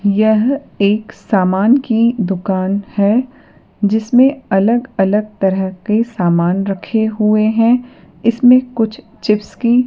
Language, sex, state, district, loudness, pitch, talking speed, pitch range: Hindi, female, Madhya Pradesh, Dhar, -15 LUFS, 215 Hz, 115 wpm, 200-235 Hz